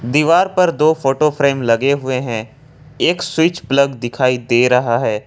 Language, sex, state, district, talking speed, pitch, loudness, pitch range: Hindi, male, Jharkhand, Ranchi, 160 wpm, 140 Hz, -15 LUFS, 125-150 Hz